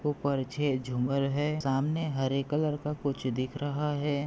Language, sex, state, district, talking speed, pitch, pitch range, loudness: Hindi, male, Maharashtra, Pune, 155 wpm, 145 Hz, 135-150 Hz, -30 LUFS